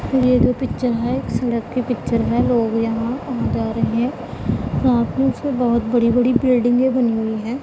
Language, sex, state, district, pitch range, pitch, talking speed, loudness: Hindi, female, Punjab, Pathankot, 235-255 Hz, 245 Hz, 175 wpm, -19 LUFS